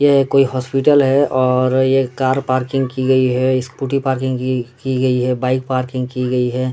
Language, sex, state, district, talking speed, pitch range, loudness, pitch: Hindi, male, Bihar, Darbhanga, 225 wpm, 125-135 Hz, -16 LUFS, 130 Hz